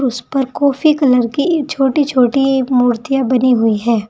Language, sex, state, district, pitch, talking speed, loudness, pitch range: Hindi, female, Uttar Pradesh, Saharanpur, 260 Hz, 160 wpm, -14 LUFS, 245-275 Hz